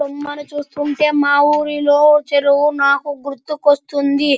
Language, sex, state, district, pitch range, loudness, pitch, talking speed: Telugu, male, Andhra Pradesh, Anantapur, 285-295 Hz, -15 LUFS, 290 Hz, 95 wpm